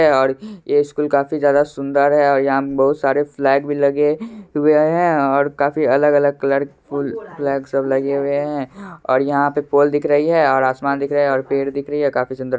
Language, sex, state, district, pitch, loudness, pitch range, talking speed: Hindi, male, Bihar, Supaul, 140 Hz, -17 LUFS, 140-145 Hz, 220 wpm